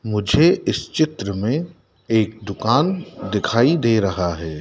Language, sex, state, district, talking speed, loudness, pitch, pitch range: Hindi, male, Madhya Pradesh, Dhar, 130 wpm, -19 LUFS, 115 Hz, 100-155 Hz